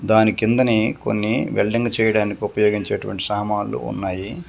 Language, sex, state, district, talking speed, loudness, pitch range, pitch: Telugu, male, Telangana, Komaram Bheem, 105 wpm, -20 LUFS, 100-110 Hz, 105 Hz